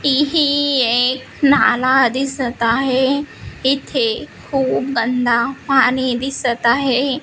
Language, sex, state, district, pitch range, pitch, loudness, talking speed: Marathi, female, Maharashtra, Gondia, 245-275 Hz, 265 Hz, -16 LUFS, 100 wpm